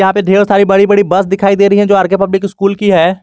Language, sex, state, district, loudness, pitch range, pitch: Hindi, male, Jharkhand, Garhwa, -10 LUFS, 195-200 Hz, 195 Hz